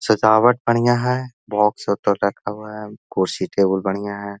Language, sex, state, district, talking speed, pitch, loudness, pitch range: Hindi, male, Bihar, Jahanabad, 165 wpm, 105 Hz, -19 LUFS, 100-120 Hz